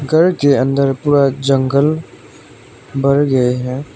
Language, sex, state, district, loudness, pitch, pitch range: Hindi, male, Arunachal Pradesh, Lower Dibang Valley, -14 LUFS, 140 Hz, 130-145 Hz